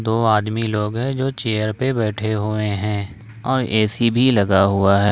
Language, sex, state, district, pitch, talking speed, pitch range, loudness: Hindi, male, Jharkhand, Ranchi, 110 Hz, 185 wpm, 105-115 Hz, -19 LUFS